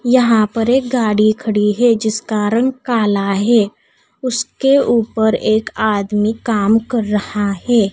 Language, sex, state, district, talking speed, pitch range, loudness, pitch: Hindi, female, Odisha, Nuapada, 135 wpm, 210-245 Hz, -15 LUFS, 220 Hz